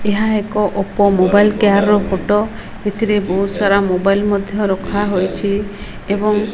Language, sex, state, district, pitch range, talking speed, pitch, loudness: Odia, female, Odisha, Malkangiri, 195-210 Hz, 120 wpm, 205 Hz, -16 LUFS